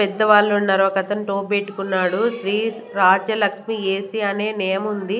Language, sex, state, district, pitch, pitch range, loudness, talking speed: Telugu, female, Andhra Pradesh, Manyam, 200 Hz, 195-210 Hz, -19 LUFS, 140 wpm